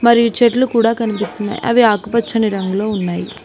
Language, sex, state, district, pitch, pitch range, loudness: Telugu, female, Telangana, Mahabubabad, 230 Hz, 210-235 Hz, -15 LUFS